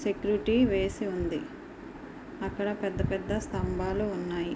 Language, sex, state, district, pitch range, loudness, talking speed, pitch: Telugu, female, Andhra Pradesh, Guntur, 190-250 Hz, -30 LUFS, 90 wpm, 205 Hz